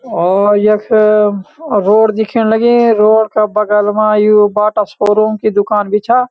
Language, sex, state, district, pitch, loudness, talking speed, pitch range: Garhwali, male, Uttarakhand, Uttarkashi, 215 Hz, -11 LUFS, 150 wpm, 210-220 Hz